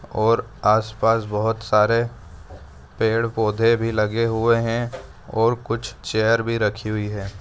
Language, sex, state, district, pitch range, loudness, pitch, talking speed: Hindi, male, Rajasthan, Churu, 105-115 Hz, -21 LUFS, 110 Hz, 145 wpm